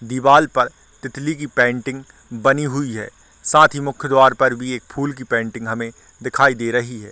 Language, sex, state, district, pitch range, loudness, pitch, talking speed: Hindi, male, Chhattisgarh, Korba, 120-140 Hz, -18 LUFS, 130 Hz, 185 wpm